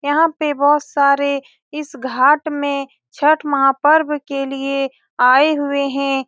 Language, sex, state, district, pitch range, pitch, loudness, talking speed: Hindi, female, Bihar, Saran, 275-295 Hz, 280 Hz, -16 LUFS, 135 wpm